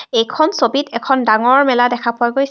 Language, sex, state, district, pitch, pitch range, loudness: Assamese, female, Assam, Kamrup Metropolitan, 245 Hz, 235-275 Hz, -14 LUFS